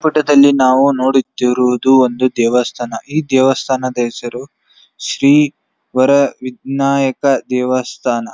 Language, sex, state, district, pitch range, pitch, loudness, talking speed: Kannada, male, Karnataka, Dharwad, 125-140 Hz, 130 Hz, -14 LUFS, 95 wpm